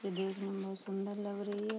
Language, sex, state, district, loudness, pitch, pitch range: Hindi, female, Uttar Pradesh, Hamirpur, -39 LUFS, 195 Hz, 195-205 Hz